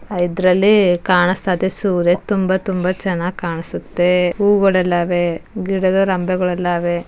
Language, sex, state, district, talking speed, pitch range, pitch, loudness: Kannada, female, Karnataka, Mysore, 100 wpm, 175-190 Hz, 185 Hz, -17 LUFS